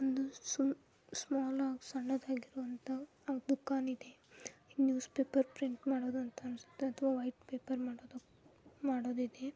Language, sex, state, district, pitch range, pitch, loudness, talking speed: Kannada, female, Karnataka, Bijapur, 255-270 Hz, 265 Hz, -39 LUFS, 115 wpm